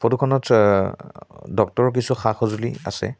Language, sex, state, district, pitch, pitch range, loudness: Assamese, male, Assam, Sonitpur, 125 Hz, 110-135 Hz, -20 LUFS